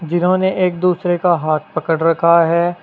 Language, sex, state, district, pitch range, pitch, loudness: Hindi, male, Uttar Pradesh, Saharanpur, 165-180 Hz, 175 Hz, -15 LUFS